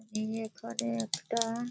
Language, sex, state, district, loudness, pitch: Bengali, female, West Bengal, Kolkata, -34 LUFS, 220 Hz